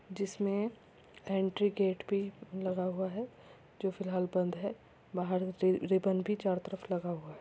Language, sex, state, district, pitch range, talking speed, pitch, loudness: Hindi, female, Uttar Pradesh, Muzaffarnagar, 185-200 Hz, 160 wpm, 190 Hz, -34 LUFS